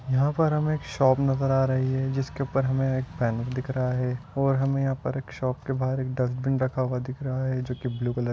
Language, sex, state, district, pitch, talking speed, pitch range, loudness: Hindi, male, Maharashtra, Dhule, 130 Hz, 245 wpm, 125-135 Hz, -26 LUFS